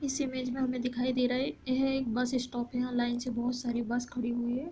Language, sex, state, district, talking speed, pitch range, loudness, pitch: Hindi, female, Uttar Pradesh, Budaun, 290 wpm, 240-255 Hz, -32 LUFS, 250 Hz